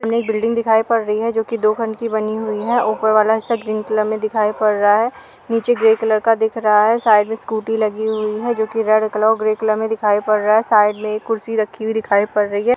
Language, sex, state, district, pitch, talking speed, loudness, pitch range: Hindi, female, Uttar Pradesh, Jalaun, 220 Hz, 270 wpm, -17 LUFS, 215-225 Hz